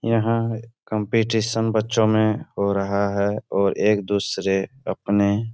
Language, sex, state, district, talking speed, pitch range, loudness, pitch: Hindi, male, Bihar, Jahanabad, 120 wpm, 100-115 Hz, -22 LUFS, 110 Hz